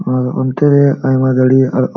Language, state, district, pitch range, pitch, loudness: Santali, Jharkhand, Sahebganj, 130-140 Hz, 130 Hz, -12 LUFS